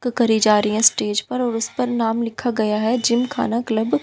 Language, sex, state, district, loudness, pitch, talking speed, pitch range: Hindi, female, Haryana, Jhajjar, -19 LUFS, 230 Hz, 240 wpm, 220-240 Hz